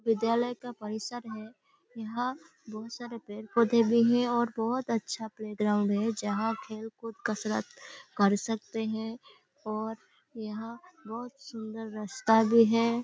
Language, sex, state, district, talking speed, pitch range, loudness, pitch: Hindi, female, Bihar, Kishanganj, 135 wpm, 220-240 Hz, -30 LUFS, 225 Hz